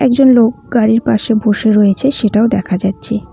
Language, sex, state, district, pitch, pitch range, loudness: Bengali, female, West Bengal, Cooch Behar, 220 Hz, 210-235 Hz, -12 LUFS